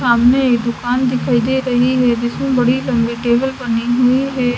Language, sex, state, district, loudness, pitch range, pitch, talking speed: Hindi, female, Haryana, Charkhi Dadri, -15 LUFS, 240-255 Hz, 245 Hz, 185 wpm